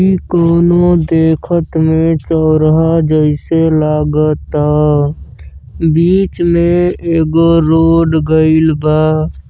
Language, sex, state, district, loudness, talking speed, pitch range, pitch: Bhojpuri, female, Uttar Pradesh, Deoria, -11 LUFS, 80 wpm, 155-165 Hz, 160 Hz